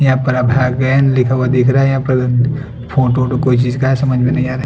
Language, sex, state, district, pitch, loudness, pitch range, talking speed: Hindi, male, Punjab, Fazilka, 130 Hz, -14 LUFS, 125-135 Hz, 245 wpm